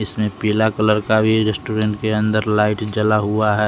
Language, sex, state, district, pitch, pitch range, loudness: Hindi, male, Bihar, West Champaran, 110 Hz, 105-110 Hz, -18 LUFS